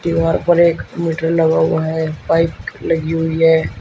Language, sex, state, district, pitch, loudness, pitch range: Hindi, male, Uttar Pradesh, Shamli, 165 Hz, -16 LUFS, 160-165 Hz